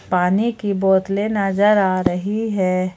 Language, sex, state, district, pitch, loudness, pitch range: Hindi, female, Jharkhand, Ranchi, 195 Hz, -18 LUFS, 185-210 Hz